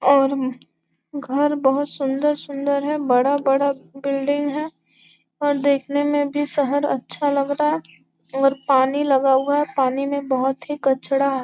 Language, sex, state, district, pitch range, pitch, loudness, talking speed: Hindi, female, Bihar, Gopalganj, 270-290 Hz, 280 Hz, -20 LUFS, 150 wpm